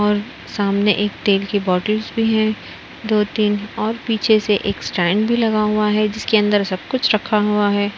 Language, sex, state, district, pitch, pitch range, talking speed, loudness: Hindi, female, Uttar Pradesh, Budaun, 210 Hz, 205-220 Hz, 195 wpm, -18 LUFS